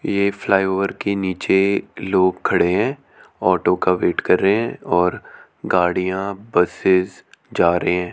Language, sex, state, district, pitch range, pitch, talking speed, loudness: Hindi, male, Chandigarh, Chandigarh, 90-100 Hz, 95 Hz, 140 wpm, -19 LUFS